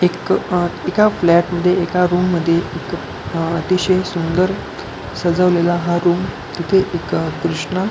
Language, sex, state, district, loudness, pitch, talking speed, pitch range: Marathi, male, Maharashtra, Pune, -17 LUFS, 175 Hz, 150 wpm, 170-185 Hz